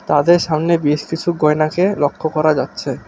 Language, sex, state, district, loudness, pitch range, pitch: Bengali, male, West Bengal, Alipurduar, -16 LUFS, 145-170 Hz, 155 Hz